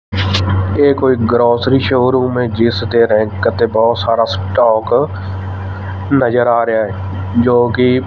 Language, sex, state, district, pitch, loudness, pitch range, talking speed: Punjabi, male, Punjab, Fazilka, 115 Hz, -14 LUFS, 95-120 Hz, 125 wpm